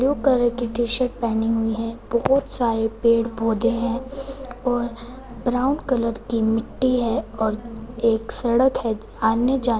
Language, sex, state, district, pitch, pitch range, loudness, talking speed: Hindi, female, Punjab, Fazilka, 235 Hz, 225-255 Hz, -22 LUFS, 155 wpm